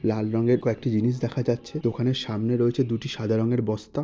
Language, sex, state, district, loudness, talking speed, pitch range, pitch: Bengali, male, West Bengal, North 24 Parganas, -25 LUFS, 210 wpm, 110-125 Hz, 120 Hz